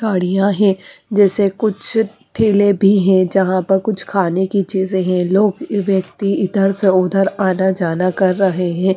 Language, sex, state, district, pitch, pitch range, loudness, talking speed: Hindi, female, Punjab, Fazilka, 195 Hz, 185-200 Hz, -15 LUFS, 160 wpm